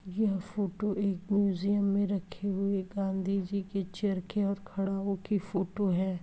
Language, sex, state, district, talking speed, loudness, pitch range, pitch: Hindi, female, Uttar Pradesh, Etah, 145 wpm, -32 LUFS, 190-200 Hz, 195 Hz